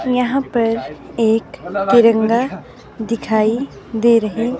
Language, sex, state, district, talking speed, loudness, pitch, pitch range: Hindi, female, Himachal Pradesh, Shimla, 90 wpm, -17 LUFS, 230 Hz, 220-245 Hz